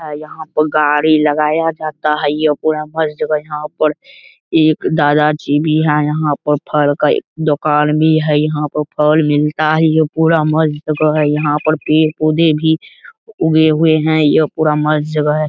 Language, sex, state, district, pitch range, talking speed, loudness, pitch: Hindi, male, Bihar, Araria, 150-155 Hz, 190 wpm, -14 LUFS, 155 Hz